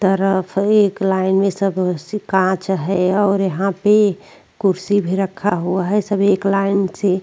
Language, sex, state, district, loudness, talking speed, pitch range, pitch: Hindi, female, Uttarakhand, Tehri Garhwal, -17 LUFS, 165 wpm, 190-200 Hz, 195 Hz